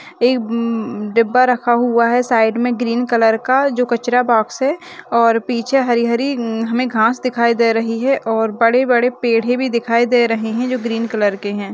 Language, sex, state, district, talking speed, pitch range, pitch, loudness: Hindi, female, Bihar, Kishanganj, 185 wpm, 230-245 Hz, 235 Hz, -16 LUFS